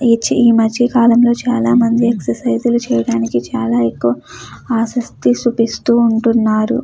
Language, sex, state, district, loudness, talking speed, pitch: Telugu, female, Andhra Pradesh, Chittoor, -14 LUFS, 70 wpm, 230 Hz